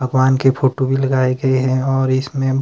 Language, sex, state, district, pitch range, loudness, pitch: Hindi, male, Himachal Pradesh, Shimla, 130-135 Hz, -16 LUFS, 130 Hz